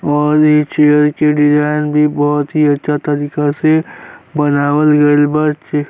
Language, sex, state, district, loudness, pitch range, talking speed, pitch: Bhojpuri, male, Uttar Pradesh, Gorakhpur, -13 LUFS, 145-150 Hz, 165 wpm, 150 Hz